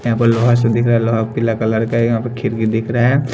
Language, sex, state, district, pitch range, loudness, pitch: Hindi, male, Haryana, Jhajjar, 115-120 Hz, -16 LUFS, 115 Hz